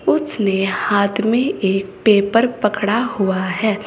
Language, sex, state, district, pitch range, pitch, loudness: Hindi, female, Uttar Pradesh, Saharanpur, 195-225 Hz, 205 Hz, -17 LUFS